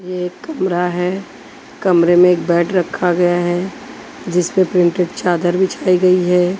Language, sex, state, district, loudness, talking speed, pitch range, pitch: Hindi, female, Maharashtra, Washim, -15 LUFS, 155 wpm, 175-185 Hz, 180 Hz